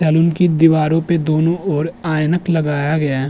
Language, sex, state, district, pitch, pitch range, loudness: Hindi, male, Uttar Pradesh, Budaun, 160 Hz, 155-170 Hz, -16 LUFS